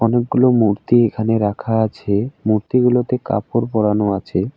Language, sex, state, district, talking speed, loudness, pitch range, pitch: Bengali, male, West Bengal, Alipurduar, 130 wpm, -17 LUFS, 105-120 Hz, 115 Hz